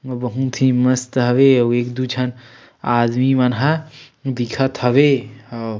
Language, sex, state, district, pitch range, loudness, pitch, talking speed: Chhattisgarhi, male, Chhattisgarh, Sarguja, 120-135 Hz, -17 LUFS, 125 Hz, 165 wpm